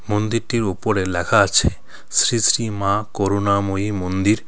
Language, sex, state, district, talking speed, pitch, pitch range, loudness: Bengali, male, West Bengal, Cooch Behar, 120 wpm, 100 Hz, 100-110 Hz, -19 LUFS